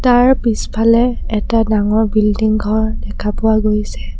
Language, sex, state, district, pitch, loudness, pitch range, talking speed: Assamese, female, Assam, Sonitpur, 220 Hz, -15 LUFS, 215-230 Hz, 130 wpm